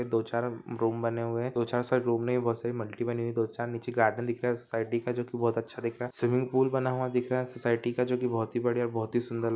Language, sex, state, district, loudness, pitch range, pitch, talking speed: Hindi, male, Maharashtra, Pune, -30 LUFS, 115-125 Hz, 120 Hz, 330 wpm